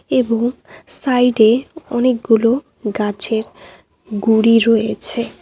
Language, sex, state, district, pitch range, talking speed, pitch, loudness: Bengali, female, West Bengal, Cooch Behar, 220-245 Hz, 65 wpm, 230 Hz, -16 LUFS